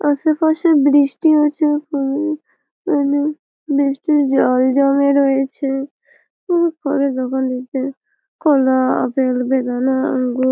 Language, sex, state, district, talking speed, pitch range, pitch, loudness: Bengali, female, West Bengal, Malda, 90 wpm, 265-305 Hz, 280 Hz, -17 LUFS